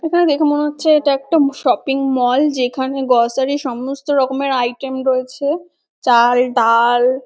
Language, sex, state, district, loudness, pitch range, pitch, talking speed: Bengali, female, West Bengal, North 24 Parganas, -16 LUFS, 250-290 Hz, 270 Hz, 150 wpm